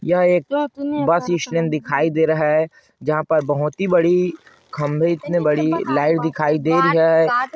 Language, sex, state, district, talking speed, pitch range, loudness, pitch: Hindi, male, Chhattisgarh, Korba, 165 wpm, 155-175 Hz, -18 LUFS, 160 Hz